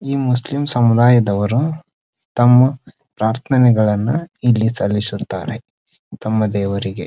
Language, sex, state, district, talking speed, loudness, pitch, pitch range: Kannada, male, Karnataka, Dharwad, 85 wpm, -16 LUFS, 120 Hz, 105-130 Hz